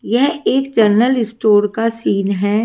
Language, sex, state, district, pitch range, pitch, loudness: Hindi, female, Haryana, Rohtak, 210-245 Hz, 225 Hz, -15 LUFS